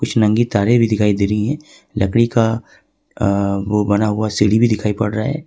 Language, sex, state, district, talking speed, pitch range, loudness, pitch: Hindi, male, Jharkhand, Ranchi, 195 wpm, 105-115 Hz, -17 LUFS, 110 Hz